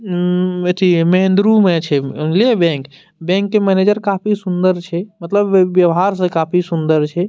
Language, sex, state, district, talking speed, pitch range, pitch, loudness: Maithili, male, Bihar, Madhepura, 150 wpm, 170-195 Hz, 180 Hz, -15 LUFS